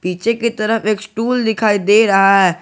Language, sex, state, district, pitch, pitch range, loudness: Hindi, male, Jharkhand, Garhwa, 215 Hz, 195-225 Hz, -14 LUFS